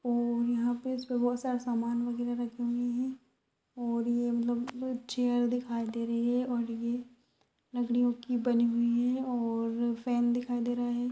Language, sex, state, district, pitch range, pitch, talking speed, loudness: Hindi, female, Rajasthan, Nagaur, 235-245 Hz, 240 Hz, 165 wpm, -31 LUFS